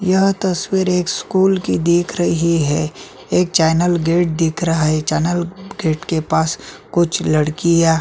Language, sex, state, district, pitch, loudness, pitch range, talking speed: Hindi, male, Chhattisgarh, Sukma, 170 Hz, -17 LUFS, 160-180 Hz, 155 wpm